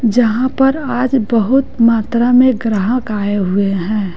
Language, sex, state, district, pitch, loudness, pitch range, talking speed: Hindi, female, Bihar, West Champaran, 230 Hz, -14 LUFS, 210-255 Hz, 145 wpm